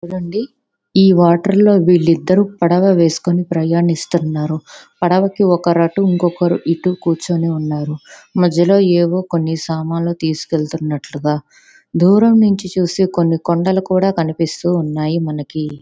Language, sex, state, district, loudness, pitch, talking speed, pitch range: Telugu, female, Andhra Pradesh, Visakhapatnam, -15 LUFS, 175 Hz, 105 wpm, 165-185 Hz